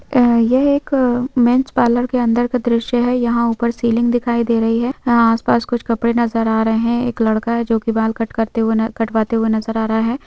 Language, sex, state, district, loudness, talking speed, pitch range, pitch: Hindi, female, West Bengal, Jhargram, -16 LUFS, 230 wpm, 225-240 Hz, 235 Hz